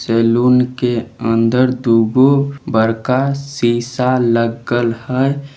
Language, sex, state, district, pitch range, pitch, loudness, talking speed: Maithili, male, Bihar, Samastipur, 115-130 Hz, 125 Hz, -15 LUFS, 110 wpm